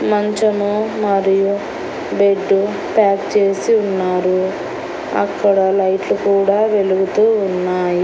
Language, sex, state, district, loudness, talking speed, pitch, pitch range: Telugu, female, Andhra Pradesh, Annamaya, -16 LUFS, 80 wpm, 200 Hz, 190-210 Hz